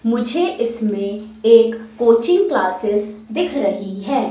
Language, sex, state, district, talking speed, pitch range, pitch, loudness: Hindi, female, Madhya Pradesh, Katni, 110 wpm, 210-240 Hz, 230 Hz, -17 LUFS